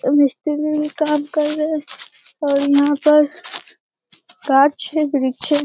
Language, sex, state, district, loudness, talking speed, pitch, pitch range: Hindi, female, Bihar, Jamui, -17 LUFS, 150 wpm, 295 Hz, 285-305 Hz